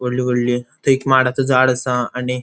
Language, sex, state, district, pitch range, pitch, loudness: Konkani, male, Goa, North and South Goa, 125-130 Hz, 125 Hz, -17 LUFS